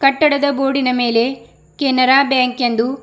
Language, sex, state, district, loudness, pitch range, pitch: Kannada, female, Karnataka, Bidar, -15 LUFS, 245-275 Hz, 260 Hz